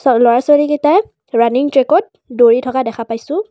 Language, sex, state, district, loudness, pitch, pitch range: Assamese, female, Assam, Kamrup Metropolitan, -13 LUFS, 260 Hz, 235-295 Hz